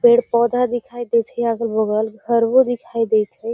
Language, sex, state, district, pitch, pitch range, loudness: Magahi, female, Bihar, Gaya, 235 Hz, 225-240 Hz, -18 LUFS